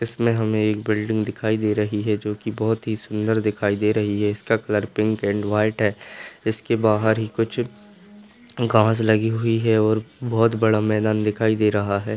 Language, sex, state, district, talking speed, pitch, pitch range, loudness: Hindi, male, Bihar, Lakhisarai, 185 wpm, 110 Hz, 105-115 Hz, -21 LUFS